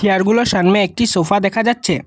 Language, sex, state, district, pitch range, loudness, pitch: Bengali, male, Assam, Kamrup Metropolitan, 185-225 Hz, -15 LUFS, 200 Hz